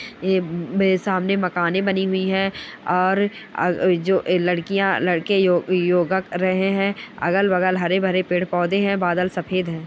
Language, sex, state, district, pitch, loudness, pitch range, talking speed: Angika, male, Bihar, Samastipur, 185 Hz, -20 LUFS, 180-195 Hz, 150 wpm